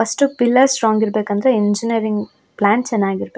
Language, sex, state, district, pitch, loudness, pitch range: Kannada, female, Karnataka, Shimoga, 220 Hz, -17 LUFS, 210-245 Hz